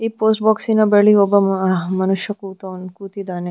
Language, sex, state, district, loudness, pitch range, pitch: Kannada, female, Karnataka, Dharwad, -16 LUFS, 190-215 Hz, 200 Hz